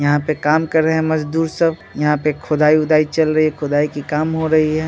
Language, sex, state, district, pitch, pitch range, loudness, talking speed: Hindi, male, Bihar, Muzaffarpur, 155 Hz, 150-160 Hz, -17 LUFS, 245 wpm